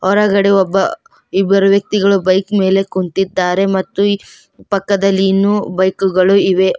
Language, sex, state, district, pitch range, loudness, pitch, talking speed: Kannada, female, Karnataka, Koppal, 190-200 Hz, -14 LUFS, 195 Hz, 115 wpm